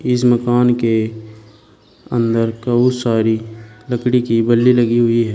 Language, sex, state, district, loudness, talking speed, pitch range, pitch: Hindi, male, Uttar Pradesh, Shamli, -16 LUFS, 135 wpm, 110-120 Hz, 115 Hz